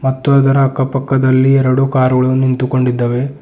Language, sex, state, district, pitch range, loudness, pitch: Kannada, male, Karnataka, Bidar, 130-135 Hz, -13 LUFS, 130 Hz